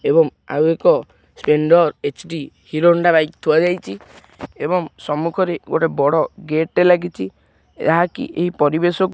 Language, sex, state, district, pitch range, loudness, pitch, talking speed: Odia, male, Odisha, Khordha, 150-175 Hz, -17 LUFS, 165 Hz, 130 wpm